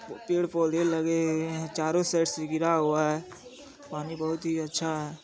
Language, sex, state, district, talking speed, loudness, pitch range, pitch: Maithili, male, Bihar, Supaul, 170 wpm, -28 LUFS, 155-170 Hz, 160 Hz